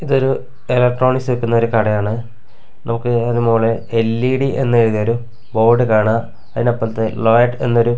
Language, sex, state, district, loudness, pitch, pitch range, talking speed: Malayalam, male, Kerala, Kasaragod, -16 LUFS, 115 Hz, 115-125 Hz, 115 wpm